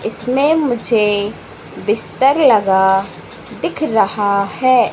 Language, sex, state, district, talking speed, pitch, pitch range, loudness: Hindi, female, Madhya Pradesh, Katni, 85 wpm, 220 Hz, 200-260 Hz, -15 LUFS